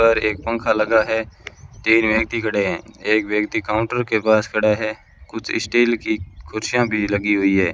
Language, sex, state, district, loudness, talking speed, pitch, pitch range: Hindi, male, Rajasthan, Bikaner, -19 LUFS, 185 wpm, 110 Hz, 105-115 Hz